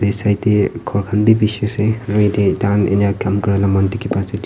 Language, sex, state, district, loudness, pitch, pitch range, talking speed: Nagamese, male, Nagaland, Kohima, -16 LUFS, 100 Hz, 100-105 Hz, 240 wpm